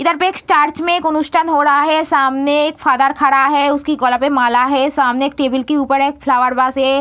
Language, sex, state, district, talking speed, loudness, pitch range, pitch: Hindi, female, Bihar, Saharsa, 250 wpm, -14 LUFS, 270-300 Hz, 280 Hz